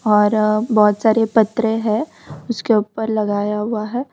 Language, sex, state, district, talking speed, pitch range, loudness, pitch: Hindi, female, Gujarat, Valsad, 145 wpm, 210-225 Hz, -17 LUFS, 215 Hz